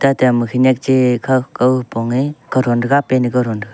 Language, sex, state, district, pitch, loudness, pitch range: Wancho, male, Arunachal Pradesh, Longding, 125 Hz, -15 LUFS, 120-130 Hz